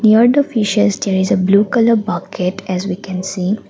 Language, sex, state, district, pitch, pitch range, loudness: English, female, Assam, Kamrup Metropolitan, 195 Hz, 185-215 Hz, -15 LUFS